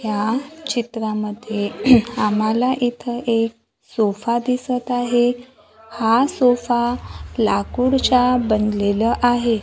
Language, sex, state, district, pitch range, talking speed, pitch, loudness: Marathi, female, Maharashtra, Gondia, 220-250 Hz, 80 wpm, 240 Hz, -19 LUFS